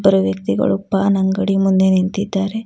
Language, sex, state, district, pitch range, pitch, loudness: Kannada, female, Karnataka, Bangalore, 185-195 Hz, 195 Hz, -17 LUFS